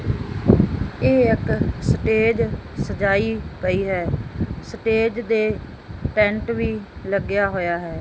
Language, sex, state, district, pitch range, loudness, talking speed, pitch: Punjabi, female, Punjab, Fazilka, 185-225 Hz, -21 LUFS, 95 wpm, 205 Hz